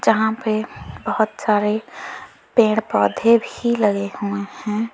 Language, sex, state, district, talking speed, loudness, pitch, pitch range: Hindi, female, Uttar Pradesh, Lalitpur, 120 wpm, -20 LUFS, 215 Hz, 205-230 Hz